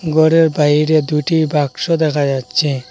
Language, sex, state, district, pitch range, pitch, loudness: Bengali, male, Assam, Hailakandi, 145-160 Hz, 150 Hz, -15 LUFS